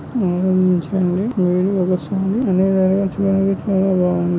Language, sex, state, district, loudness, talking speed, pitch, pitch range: Telugu, male, Andhra Pradesh, Chittoor, -17 LUFS, 165 wpm, 190 Hz, 180-195 Hz